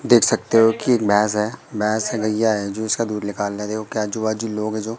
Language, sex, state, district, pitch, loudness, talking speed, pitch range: Hindi, male, Madhya Pradesh, Katni, 110 Hz, -20 LUFS, 265 wpm, 105-110 Hz